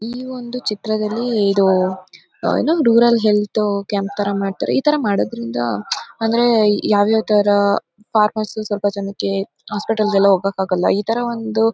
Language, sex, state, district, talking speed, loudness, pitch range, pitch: Kannada, female, Karnataka, Mysore, 140 wpm, -18 LUFS, 200-225 Hz, 210 Hz